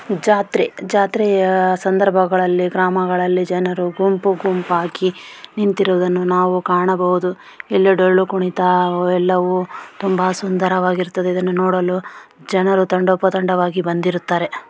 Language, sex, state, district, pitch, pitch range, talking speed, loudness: Kannada, female, Karnataka, Shimoga, 185 Hz, 180-190 Hz, 90 wpm, -17 LUFS